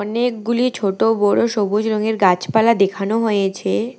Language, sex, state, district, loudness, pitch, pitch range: Bengali, female, West Bengal, Alipurduar, -17 LUFS, 220 Hz, 200-230 Hz